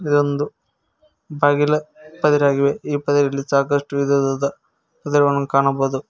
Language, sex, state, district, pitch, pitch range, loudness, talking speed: Kannada, male, Karnataka, Koppal, 145 Hz, 140-150 Hz, -19 LUFS, 100 wpm